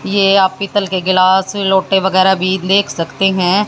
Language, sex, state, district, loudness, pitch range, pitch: Hindi, female, Haryana, Jhajjar, -13 LUFS, 185-195 Hz, 190 Hz